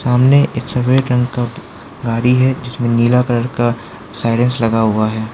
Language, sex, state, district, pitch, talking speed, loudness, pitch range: Hindi, male, Arunachal Pradesh, Lower Dibang Valley, 120 Hz, 170 wpm, -15 LUFS, 115-125 Hz